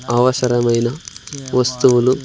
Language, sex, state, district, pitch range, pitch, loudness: Telugu, male, Andhra Pradesh, Sri Satya Sai, 120-130 Hz, 125 Hz, -16 LUFS